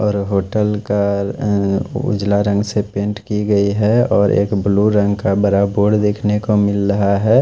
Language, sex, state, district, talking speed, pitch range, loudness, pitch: Hindi, male, Odisha, Khordha, 180 wpm, 100-105 Hz, -16 LUFS, 105 Hz